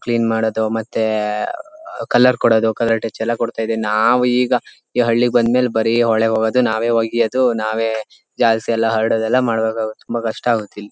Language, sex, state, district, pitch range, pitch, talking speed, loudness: Kannada, male, Karnataka, Shimoga, 110-120 Hz, 115 Hz, 175 wpm, -17 LUFS